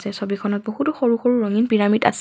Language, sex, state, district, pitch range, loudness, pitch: Assamese, female, Assam, Kamrup Metropolitan, 205-240 Hz, -20 LUFS, 220 Hz